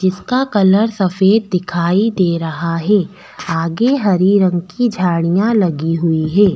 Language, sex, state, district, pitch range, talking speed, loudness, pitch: Hindi, female, Delhi, New Delhi, 170-205 Hz, 135 wpm, -15 LUFS, 185 Hz